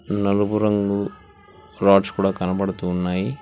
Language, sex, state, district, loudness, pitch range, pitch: Telugu, male, Telangana, Hyderabad, -21 LUFS, 95-100 Hz, 100 Hz